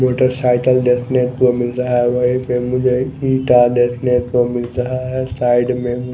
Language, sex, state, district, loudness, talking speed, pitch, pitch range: Hindi, male, Bihar, West Champaran, -16 LUFS, 145 wpm, 125 Hz, 125-130 Hz